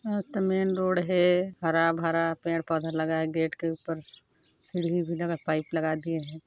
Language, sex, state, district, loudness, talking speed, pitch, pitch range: Hindi, female, Chhattisgarh, Sarguja, -28 LUFS, 195 wpm, 165 Hz, 160-180 Hz